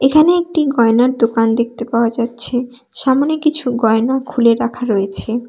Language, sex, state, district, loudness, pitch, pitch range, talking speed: Bengali, female, West Bengal, Cooch Behar, -15 LUFS, 245 Hz, 230-265 Hz, 140 wpm